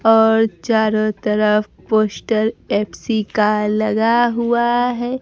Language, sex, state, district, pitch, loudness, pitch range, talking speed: Hindi, female, Bihar, Kaimur, 220 Hz, -17 LUFS, 215-235 Hz, 105 wpm